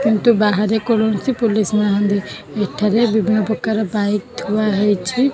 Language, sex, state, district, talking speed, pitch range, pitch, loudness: Odia, female, Odisha, Khordha, 110 wpm, 205-220 Hz, 215 Hz, -17 LUFS